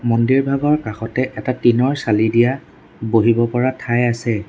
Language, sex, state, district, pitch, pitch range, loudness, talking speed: Assamese, male, Assam, Sonitpur, 120 Hz, 115-130 Hz, -17 LUFS, 135 wpm